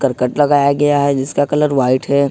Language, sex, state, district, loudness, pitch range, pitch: Hindi, male, Jharkhand, Ranchi, -14 LUFS, 135-145 Hz, 140 Hz